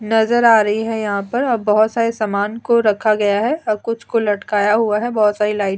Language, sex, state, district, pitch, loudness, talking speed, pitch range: Hindi, female, Uttar Pradesh, Jalaun, 215 Hz, -17 LUFS, 250 wpm, 210-230 Hz